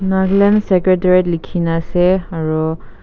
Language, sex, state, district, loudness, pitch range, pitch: Nagamese, female, Nagaland, Kohima, -15 LUFS, 165-190 Hz, 180 Hz